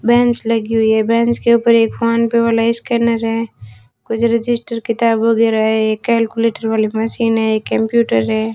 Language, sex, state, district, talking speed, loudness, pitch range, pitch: Hindi, female, Rajasthan, Jaisalmer, 170 wpm, -15 LUFS, 220-230 Hz, 230 Hz